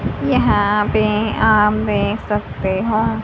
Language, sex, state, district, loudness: Hindi, female, Haryana, Charkhi Dadri, -17 LUFS